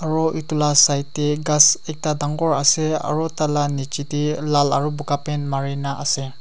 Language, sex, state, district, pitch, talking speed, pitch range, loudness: Nagamese, male, Nagaland, Kohima, 150 Hz, 160 wpm, 145-155 Hz, -19 LUFS